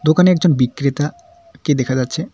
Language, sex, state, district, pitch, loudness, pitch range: Bengali, male, West Bengal, Cooch Behar, 155 Hz, -17 LUFS, 135-180 Hz